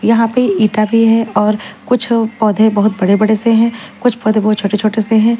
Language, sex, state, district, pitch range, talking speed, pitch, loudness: Hindi, female, Delhi, New Delhi, 215-230 Hz, 200 wpm, 220 Hz, -13 LUFS